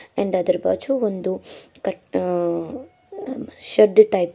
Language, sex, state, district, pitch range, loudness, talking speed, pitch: Kannada, female, Karnataka, Koppal, 180-255 Hz, -21 LUFS, 125 wpm, 205 Hz